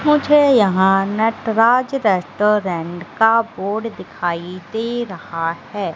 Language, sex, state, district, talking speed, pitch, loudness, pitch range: Hindi, female, Madhya Pradesh, Katni, 100 wpm, 210 Hz, -17 LUFS, 185-230 Hz